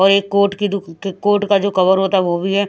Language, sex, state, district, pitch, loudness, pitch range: Hindi, female, Odisha, Khordha, 195 Hz, -16 LUFS, 190-200 Hz